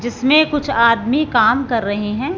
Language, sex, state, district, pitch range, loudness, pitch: Hindi, female, Punjab, Fazilka, 230-285 Hz, -15 LUFS, 240 Hz